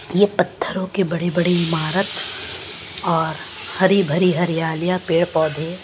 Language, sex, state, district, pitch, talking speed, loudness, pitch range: Hindi, female, Punjab, Pathankot, 175 Hz, 90 wpm, -20 LUFS, 160-185 Hz